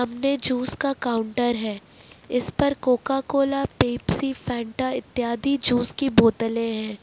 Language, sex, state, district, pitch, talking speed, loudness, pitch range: Hindi, male, Jharkhand, Ranchi, 245 Hz, 130 wpm, -23 LUFS, 230-275 Hz